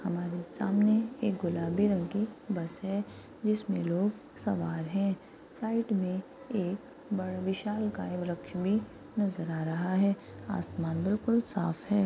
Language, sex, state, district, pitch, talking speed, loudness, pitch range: Hindi, female, Rajasthan, Churu, 195 Hz, 135 wpm, -32 LUFS, 175-215 Hz